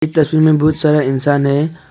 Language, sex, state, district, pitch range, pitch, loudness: Hindi, male, Arunachal Pradesh, Papum Pare, 145-155 Hz, 150 Hz, -14 LUFS